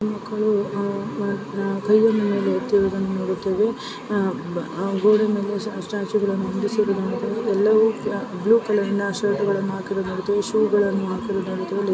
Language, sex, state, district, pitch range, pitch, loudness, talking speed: Kannada, female, Karnataka, Raichur, 195-210 Hz, 200 Hz, -22 LUFS, 85 wpm